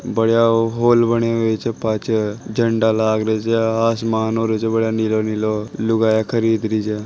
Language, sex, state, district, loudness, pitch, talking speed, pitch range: Marwari, male, Rajasthan, Nagaur, -18 LUFS, 110 Hz, 170 wpm, 110-115 Hz